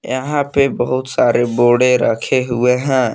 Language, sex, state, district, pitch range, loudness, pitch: Hindi, male, Jharkhand, Palamu, 120-130 Hz, -15 LUFS, 125 Hz